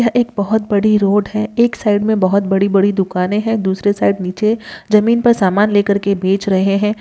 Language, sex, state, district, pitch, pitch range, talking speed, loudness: Hindi, female, Bihar, Jahanabad, 205 Hz, 195-215 Hz, 205 wpm, -15 LUFS